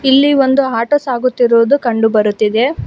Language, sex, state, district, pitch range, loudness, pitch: Kannada, female, Karnataka, Bangalore, 230-275 Hz, -13 LUFS, 250 Hz